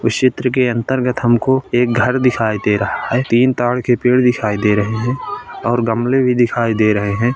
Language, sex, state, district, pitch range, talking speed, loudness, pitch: Hindi, male, Uttar Pradesh, Ghazipur, 115-125 Hz, 205 wpm, -15 LUFS, 120 Hz